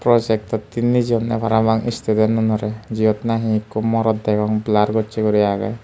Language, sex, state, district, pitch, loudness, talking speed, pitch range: Chakma, male, Tripura, Unakoti, 110 Hz, -19 LUFS, 145 wpm, 110-115 Hz